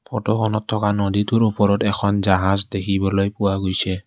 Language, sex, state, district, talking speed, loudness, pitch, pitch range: Assamese, male, Assam, Kamrup Metropolitan, 135 wpm, -19 LUFS, 100 Hz, 95-105 Hz